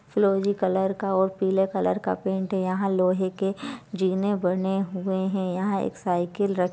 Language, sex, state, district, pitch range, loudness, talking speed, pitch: Hindi, female, Chhattisgarh, Balrampur, 185-195 Hz, -25 LUFS, 180 wpm, 190 Hz